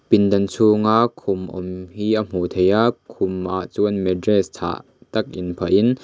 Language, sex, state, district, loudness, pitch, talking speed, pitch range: Mizo, male, Mizoram, Aizawl, -20 LUFS, 100 Hz, 170 wpm, 90-110 Hz